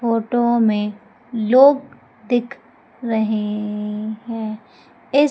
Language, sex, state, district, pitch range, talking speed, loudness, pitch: Hindi, female, Madhya Pradesh, Umaria, 215-240 Hz, 80 wpm, -19 LUFS, 225 Hz